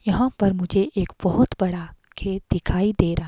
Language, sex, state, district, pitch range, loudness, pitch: Hindi, female, Himachal Pradesh, Shimla, 180-200 Hz, -23 LUFS, 195 Hz